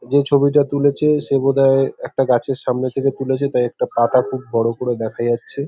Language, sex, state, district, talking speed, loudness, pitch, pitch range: Bengali, male, West Bengal, Paschim Medinipur, 190 wpm, -18 LUFS, 135 Hz, 125-140 Hz